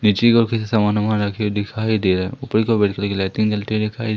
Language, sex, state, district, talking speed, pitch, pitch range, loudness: Hindi, male, Madhya Pradesh, Umaria, 260 wpm, 105 Hz, 105-110 Hz, -19 LUFS